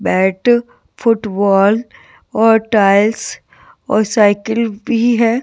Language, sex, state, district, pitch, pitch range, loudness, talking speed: Hindi, female, Himachal Pradesh, Shimla, 220 Hz, 205-230 Hz, -14 LUFS, 90 wpm